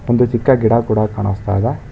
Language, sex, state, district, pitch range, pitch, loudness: Kannada, male, Karnataka, Bangalore, 105-120 Hz, 115 Hz, -16 LUFS